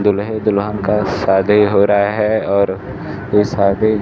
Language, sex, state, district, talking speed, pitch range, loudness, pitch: Hindi, male, Bihar, Kaimur, 150 wpm, 100-105 Hz, -15 LUFS, 105 Hz